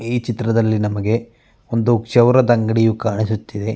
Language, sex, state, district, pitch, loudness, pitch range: Kannada, male, Karnataka, Mysore, 115 Hz, -17 LUFS, 110-120 Hz